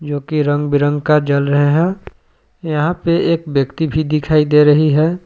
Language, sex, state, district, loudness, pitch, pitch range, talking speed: Hindi, male, Jharkhand, Palamu, -15 LUFS, 150 Hz, 145-160 Hz, 180 wpm